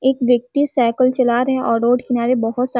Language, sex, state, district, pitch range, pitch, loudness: Hindi, female, Chhattisgarh, Balrampur, 240-255 Hz, 250 Hz, -17 LUFS